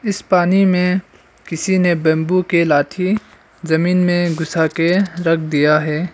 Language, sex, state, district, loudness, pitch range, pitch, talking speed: Hindi, male, Arunachal Pradesh, Longding, -16 LUFS, 160-185 Hz, 175 Hz, 145 wpm